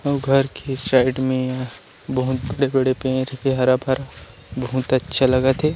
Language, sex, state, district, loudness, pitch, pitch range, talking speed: Chhattisgarhi, male, Chhattisgarh, Rajnandgaon, -20 LUFS, 130 Hz, 130-135 Hz, 145 wpm